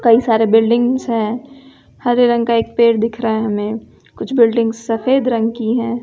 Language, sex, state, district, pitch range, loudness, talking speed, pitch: Hindi, female, Bihar, West Champaran, 225-240 Hz, -15 LUFS, 190 wpm, 230 Hz